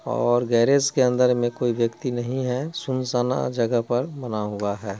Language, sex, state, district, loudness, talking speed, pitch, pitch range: Hindi, male, Bihar, Muzaffarpur, -23 LUFS, 180 wpm, 120 Hz, 115-130 Hz